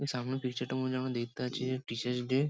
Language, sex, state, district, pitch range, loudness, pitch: Bengali, male, West Bengal, Kolkata, 125-130 Hz, -35 LUFS, 130 Hz